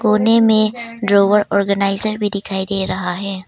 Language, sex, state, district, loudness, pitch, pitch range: Hindi, female, Arunachal Pradesh, Papum Pare, -16 LUFS, 200 Hz, 195-215 Hz